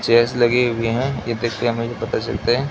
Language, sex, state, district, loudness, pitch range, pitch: Hindi, male, Maharashtra, Mumbai Suburban, -20 LUFS, 115-120 Hz, 120 Hz